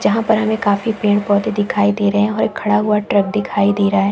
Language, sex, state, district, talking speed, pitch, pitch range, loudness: Hindi, female, Bihar, Saran, 260 wpm, 205 Hz, 200-210 Hz, -16 LUFS